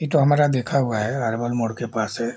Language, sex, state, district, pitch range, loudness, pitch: Hindi, male, Bihar, Jahanabad, 115-140 Hz, -22 LUFS, 120 Hz